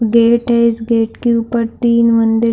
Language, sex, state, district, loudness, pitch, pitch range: Hindi, female, Bihar, Saharsa, -13 LUFS, 230 Hz, 230-235 Hz